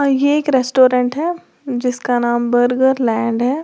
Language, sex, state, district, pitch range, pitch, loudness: Hindi, female, Uttar Pradesh, Lalitpur, 245-275 Hz, 255 Hz, -16 LUFS